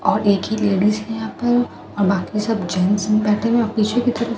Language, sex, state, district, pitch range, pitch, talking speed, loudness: Hindi, female, Bihar, Katihar, 205-230 Hz, 215 Hz, 245 wpm, -19 LUFS